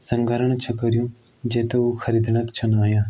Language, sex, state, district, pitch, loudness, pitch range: Garhwali, male, Uttarakhand, Tehri Garhwal, 120 Hz, -22 LUFS, 115-120 Hz